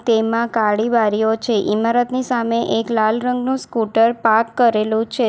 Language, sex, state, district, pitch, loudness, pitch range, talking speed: Gujarati, female, Gujarat, Valsad, 230 Hz, -17 LUFS, 220-240 Hz, 145 wpm